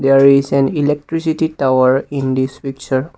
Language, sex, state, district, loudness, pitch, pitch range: English, male, Assam, Kamrup Metropolitan, -15 LUFS, 135 Hz, 135-145 Hz